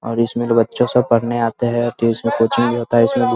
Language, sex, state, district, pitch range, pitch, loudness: Hindi, male, Bihar, Muzaffarpur, 115-120 Hz, 115 Hz, -17 LUFS